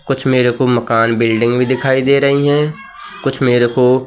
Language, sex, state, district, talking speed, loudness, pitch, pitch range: Hindi, male, Madhya Pradesh, Katni, 190 wpm, -14 LUFS, 130 Hz, 120-140 Hz